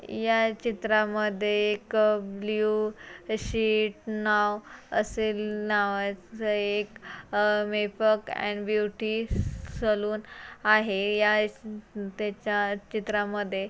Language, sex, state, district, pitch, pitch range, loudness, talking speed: Marathi, female, Maharashtra, Pune, 210 Hz, 205-215 Hz, -27 LUFS, 85 wpm